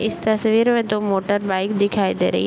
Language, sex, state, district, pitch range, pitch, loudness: Hindi, male, Bihar, Bhagalpur, 195-220 Hz, 205 Hz, -19 LUFS